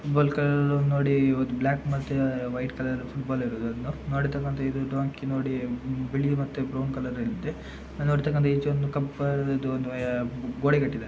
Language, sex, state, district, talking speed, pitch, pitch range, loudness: Kannada, male, Karnataka, Dakshina Kannada, 150 wpm, 135 Hz, 130-140 Hz, -27 LUFS